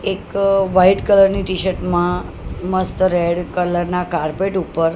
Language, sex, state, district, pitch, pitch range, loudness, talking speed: Gujarati, female, Gujarat, Gandhinagar, 185 Hz, 175-190 Hz, -17 LUFS, 155 wpm